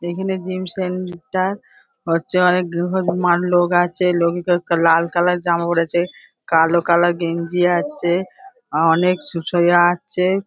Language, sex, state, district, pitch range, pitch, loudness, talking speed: Bengali, female, West Bengal, Dakshin Dinajpur, 170-180 Hz, 175 Hz, -18 LUFS, 115 wpm